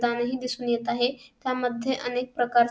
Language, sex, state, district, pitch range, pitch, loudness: Marathi, female, Maharashtra, Sindhudurg, 240-255 Hz, 245 Hz, -27 LUFS